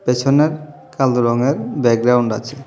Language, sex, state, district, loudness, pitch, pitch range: Bengali, male, Tripura, South Tripura, -16 LUFS, 125 Hz, 120-140 Hz